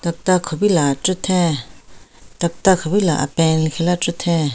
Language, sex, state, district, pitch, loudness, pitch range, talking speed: Rengma, female, Nagaland, Kohima, 170 Hz, -18 LUFS, 150-180 Hz, 105 wpm